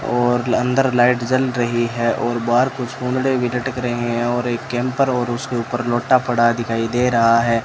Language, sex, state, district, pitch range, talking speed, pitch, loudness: Hindi, male, Rajasthan, Bikaner, 120-125 Hz, 195 wpm, 120 Hz, -18 LUFS